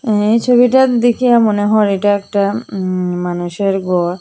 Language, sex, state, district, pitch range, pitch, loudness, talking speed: Bengali, female, Assam, Hailakandi, 185-235 Hz, 205 Hz, -14 LUFS, 140 wpm